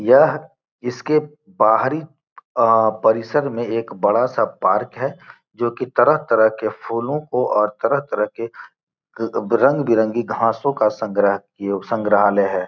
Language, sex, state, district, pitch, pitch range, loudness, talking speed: Hindi, male, Bihar, Gopalganj, 115 Hz, 110-135 Hz, -19 LUFS, 130 wpm